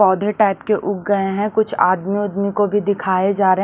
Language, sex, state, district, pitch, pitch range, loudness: Hindi, female, Maharashtra, Washim, 200 Hz, 190-205 Hz, -18 LUFS